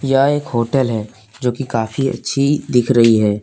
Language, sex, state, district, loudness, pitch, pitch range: Hindi, male, Jharkhand, Deoghar, -16 LUFS, 125 Hz, 115-135 Hz